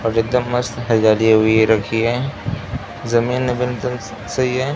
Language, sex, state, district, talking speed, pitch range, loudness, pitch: Hindi, male, Maharashtra, Mumbai Suburban, 150 wpm, 110-125 Hz, -18 LUFS, 120 Hz